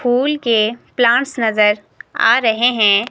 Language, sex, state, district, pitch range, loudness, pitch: Hindi, female, Himachal Pradesh, Shimla, 220-245 Hz, -15 LUFS, 235 Hz